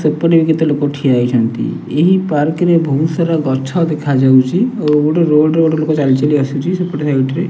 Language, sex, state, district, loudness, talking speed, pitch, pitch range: Odia, male, Odisha, Nuapada, -13 LUFS, 210 wpm, 155 Hz, 140-165 Hz